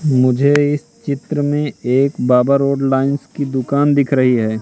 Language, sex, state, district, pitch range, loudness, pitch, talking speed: Hindi, male, Madhya Pradesh, Katni, 130-145 Hz, -16 LUFS, 140 Hz, 170 wpm